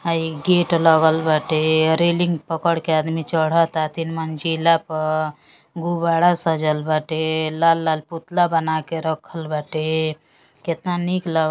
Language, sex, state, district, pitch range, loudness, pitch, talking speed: Bhojpuri, female, Uttar Pradesh, Deoria, 155-165 Hz, -20 LUFS, 160 Hz, 130 wpm